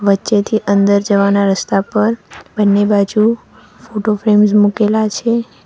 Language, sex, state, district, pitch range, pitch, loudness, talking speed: Gujarati, female, Gujarat, Valsad, 200-215 Hz, 210 Hz, -13 LUFS, 115 wpm